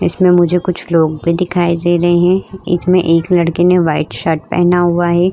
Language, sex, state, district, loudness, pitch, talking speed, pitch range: Hindi, female, Uttar Pradesh, Hamirpur, -13 LUFS, 175 Hz, 205 wpm, 170-180 Hz